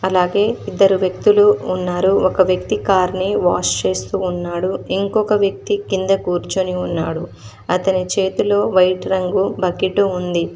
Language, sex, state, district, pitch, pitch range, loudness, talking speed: Telugu, female, Telangana, Mahabubabad, 185 Hz, 180-195 Hz, -17 LUFS, 125 wpm